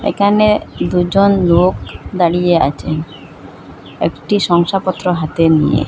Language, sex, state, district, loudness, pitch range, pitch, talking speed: Bengali, female, Assam, Hailakandi, -14 LUFS, 170-200 Hz, 180 Hz, 90 wpm